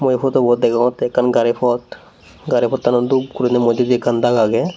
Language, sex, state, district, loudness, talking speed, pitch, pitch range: Chakma, male, Tripura, Unakoti, -16 LUFS, 200 wpm, 125 Hz, 120-130 Hz